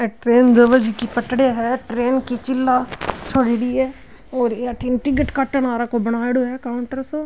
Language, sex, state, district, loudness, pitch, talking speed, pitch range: Marwari, female, Rajasthan, Nagaur, -19 LUFS, 250 Hz, 180 wpm, 240-260 Hz